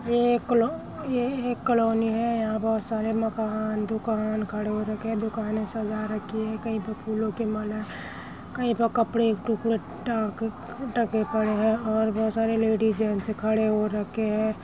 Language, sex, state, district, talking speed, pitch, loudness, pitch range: Hindi, female, Uttar Pradesh, Muzaffarnagar, 190 wpm, 220 Hz, -26 LUFS, 215-230 Hz